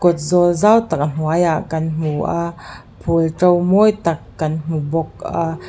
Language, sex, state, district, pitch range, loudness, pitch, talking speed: Mizo, female, Mizoram, Aizawl, 160-175 Hz, -17 LUFS, 165 Hz, 180 wpm